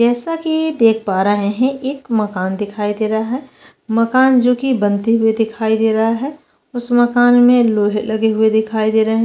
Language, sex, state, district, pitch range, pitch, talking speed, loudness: Hindi, female, Chhattisgarh, Kabirdham, 220-245 Hz, 225 Hz, 195 wpm, -15 LUFS